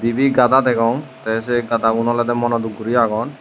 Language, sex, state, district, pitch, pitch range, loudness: Chakma, male, Tripura, West Tripura, 120 Hz, 115-125 Hz, -17 LUFS